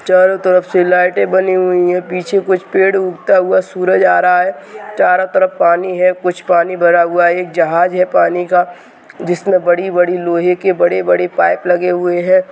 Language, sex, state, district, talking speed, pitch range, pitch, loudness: Hindi, female, Uttarakhand, Tehri Garhwal, 185 wpm, 175-185 Hz, 180 Hz, -13 LUFS